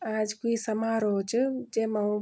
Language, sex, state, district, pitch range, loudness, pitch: Garhwali, female, Uttarakhand, Tehri Garhwal, 215-230 Hz, -28 LUFS, 220 Hz